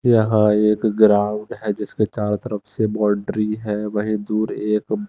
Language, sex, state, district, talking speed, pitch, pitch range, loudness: Hindi, male, Bihar, Katihar, 155 wpm, 105 Hz, 105-110 Hz, -20 LUFS